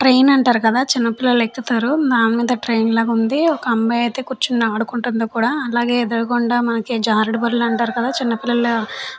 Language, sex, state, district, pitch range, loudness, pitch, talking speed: Telugu, female, Andhra Pradesh, Chittoor, 230-250 Hz, -17 LUFS, 235 Hz, 155 wpm